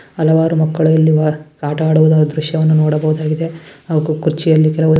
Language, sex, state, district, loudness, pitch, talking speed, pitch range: Kannada, female, Karnataka, Shimoga, -14 LUFS, 155 Hz, 120 wpm, 155-160 Hz